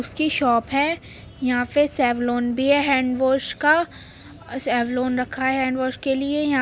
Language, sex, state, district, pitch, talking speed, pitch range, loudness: Hindi, female, Uttar Pradesh, Muzaffarnagar, 260 Hz, 170 wpm, 250-285 Hz, -21 LUFS